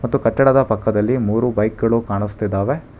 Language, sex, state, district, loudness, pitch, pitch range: Kannada, male, Karnataka, Bangalore, -18 LUFS, 115 Hz, 105-130 Hz